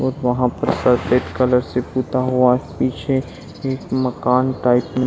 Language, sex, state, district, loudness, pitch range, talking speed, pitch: Hindi, male, Bihar, Saran, -19 LUFS, 125-130 Hz, 165 wpm, 125 Hz